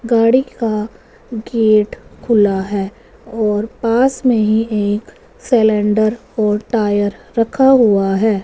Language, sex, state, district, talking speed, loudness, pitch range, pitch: Hindi, female, Punjab, Fazilka, 115 wpm, -15 LUFS, 210-230 Hz, 220 Hz